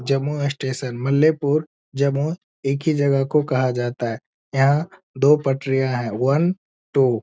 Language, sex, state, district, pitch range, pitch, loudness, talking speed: Hindi, male, Bihar, Jamui, 130-150 Hz, 135 Hz, -21 LUFS, 150 wpm